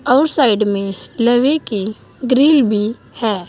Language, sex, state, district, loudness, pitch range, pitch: Hindi, female, Uttar Pradesh, Saharanpur, -15 LUFS, 210-265 Hz, 240 Hz